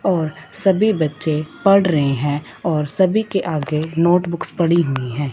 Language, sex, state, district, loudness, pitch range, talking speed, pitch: Hindi, female, Punjab, Fazilka, -18 LUFS, 150-185 Hz, 160 wpm, 160 Hz